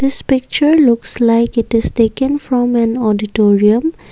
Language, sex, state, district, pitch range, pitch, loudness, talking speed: English, female, Assam, Kamrup Metropolitan, 225-265 Hz, 235 Hz, -13 LUFS, 145 wpm